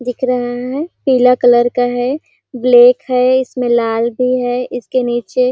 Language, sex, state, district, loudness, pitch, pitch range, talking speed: Hindi, female, Chhattisgarh, Sarguja, -14 LUFS, 250 Hz, 245-255 Hz, 165 wpm